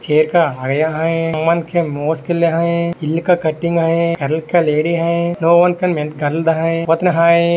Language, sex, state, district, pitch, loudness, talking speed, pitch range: Hindi, male, Maharashtra, Sindhudurg, 165 Hz, -16 LUFS, 125 wpm, 155-170 Hz